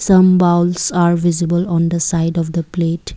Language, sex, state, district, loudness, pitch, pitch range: English, female, Assam, Kamrup Metropolitan, -15 LUFS, 170 Hz, 170-175 Hz